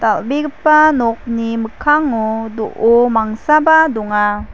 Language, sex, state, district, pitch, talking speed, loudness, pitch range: Garo, female, Meghalaya, West Garo Hills, 230 Hz, 80 wpm, -14 LUFS, 220-300 Hz